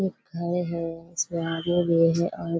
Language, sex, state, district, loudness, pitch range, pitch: Hindi, female, Bihar, Kishanganj, -26 LUFS, 165-175 Hz, 170 Hz